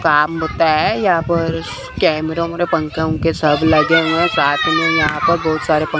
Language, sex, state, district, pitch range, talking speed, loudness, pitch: Hindi, male, Chandigarh, Chandigarh, 155-165 Hz, 190 wpm, -16 LUFS, 160 Hz